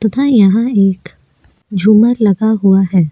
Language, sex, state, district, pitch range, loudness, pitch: Hindi, female, Uttar Pradesh, Jyotiba Phule Nagar, 195-220 Hz, -11 LUFS, 210 Hz